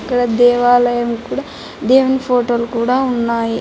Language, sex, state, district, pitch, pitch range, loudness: Telugu, female, Andhra Pradesh, Anantapur, 245 Hz, 235-250 Hz, -15 LUFS